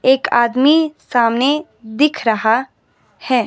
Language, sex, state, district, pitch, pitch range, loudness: Hindi, female, Himachal Pradesh, Shimla, 255 Hz, 235-295 Hz, -15 LUFS